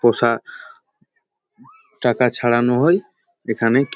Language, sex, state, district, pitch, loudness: Bengali, male, West Bengal, Jalpaiguri, 140 Hz, -18 LUFS